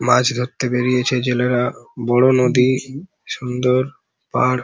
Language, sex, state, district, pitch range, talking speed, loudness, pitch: Bengali, male, West Bengal, Paschim Medinipur, 125-130 Hz, 115 wpm, -18 LUFS, 125 Hz